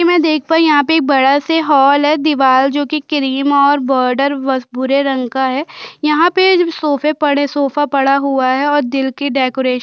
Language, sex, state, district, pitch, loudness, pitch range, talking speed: Hindi, female, Chhattisgarh, Jashpur, 280 Hz, -13 LUFS, 265-300 Hz, 200 wpm